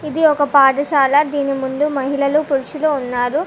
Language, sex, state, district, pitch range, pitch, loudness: Telugu, female, Telangana, Komaram Bheem, 275-300 Hz, 285 Hz, -16 LUFS